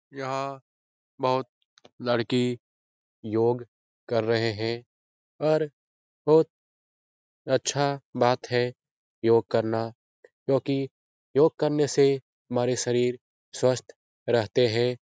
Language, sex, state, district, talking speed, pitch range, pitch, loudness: Hindi, male, Bihar, Jahanabad, 90 wpm, 115-135 Hz, 125 Hz, -26 LUFS